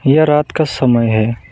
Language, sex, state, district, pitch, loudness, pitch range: Hindi, male, West Bengal, Alipurduar, 130 Hz, -14 LUFS, 115-150 Hz